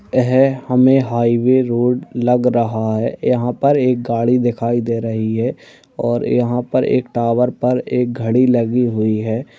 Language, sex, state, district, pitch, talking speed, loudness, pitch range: Hindi, male, Chhattisgarh, Bastar, 120 Hz, 165 wpm, -16 LUFS, 115-125 Hz